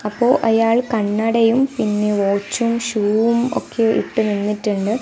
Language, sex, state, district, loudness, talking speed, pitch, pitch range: Malayalam, female, Kerala, Kasaragod, -18 LUFS, 105 wpm, 225 Hz, 210-235 Hz